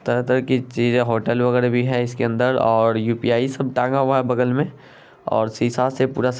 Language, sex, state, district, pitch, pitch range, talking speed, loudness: Hindi, male, Bihar, Saharsa, 125 Hz, 120-130 Hz, 195 wpm, -20 LUFS